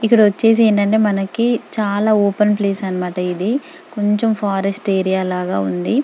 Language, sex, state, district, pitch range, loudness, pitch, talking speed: Telugu, female, Telangana, Karimnagar, 195-225 Hz, -17 LUFS, 205 Hz, 150 wpm